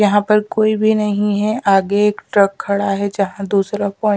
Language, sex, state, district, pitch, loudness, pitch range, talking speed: Hindi, female, Chhattisgarh, Raipur, 205 Hz, -16 LUFS, 200-210 Hz, 200 wpm